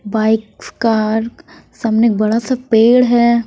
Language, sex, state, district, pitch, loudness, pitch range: Hindi, female, Punjab, Kapurthala, 230 Hz, -14 LUFS, 220-240 Hz